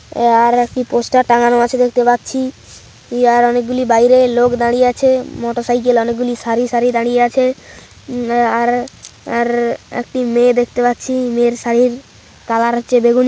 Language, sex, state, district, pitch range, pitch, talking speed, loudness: Bengali, male, West Bengal, Paschim Medinipur, 235-250 Hz, 245 Hz, 135 wpm, -14 LUFS